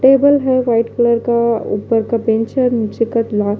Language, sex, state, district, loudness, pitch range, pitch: Hindi, female, Bihar, Katihar, -15 LUFS, 225-250 Hz, 230 Hz